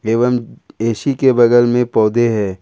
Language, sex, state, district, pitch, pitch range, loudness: Hindi, male, Jharkhand, Ranchi, 120 Hz, 110-125 Hz, -14 LUFS